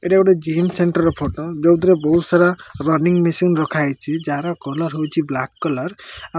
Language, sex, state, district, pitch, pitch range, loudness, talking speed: Odia, male, Odisha, Malkangiri, 165 Hz, 155-175 Hz, -18 LUFS, 170 wpm